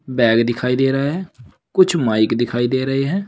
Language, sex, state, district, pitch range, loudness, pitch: Hindi, male, Uttar Pradesh, Saharanpur, 120-140 Hz, -17 LUFS, 130 Hz